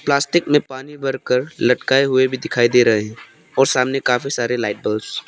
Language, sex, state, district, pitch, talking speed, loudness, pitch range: Hindi, male, Arunachal Pradesh, Papum Pare, 130 Hz, 195 wpm, -18 LUFS, 120-140 Hz